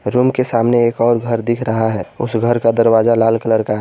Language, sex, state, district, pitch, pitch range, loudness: Hindi, male, Jharkhand, Garhwa, 115 Hz, 115-120 Hz, -15 LUFS